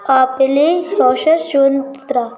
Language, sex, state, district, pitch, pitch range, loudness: Hindi, male, Madhya Pradesh, Bhopal, 275 Hz, 260-315 Hz, -14 LUFS